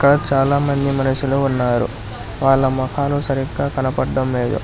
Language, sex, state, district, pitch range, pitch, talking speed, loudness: Telugu, male, Telangana, Hyderabad, 125-140 Hz, 135 Hz, 115 wpm, -18 LUFS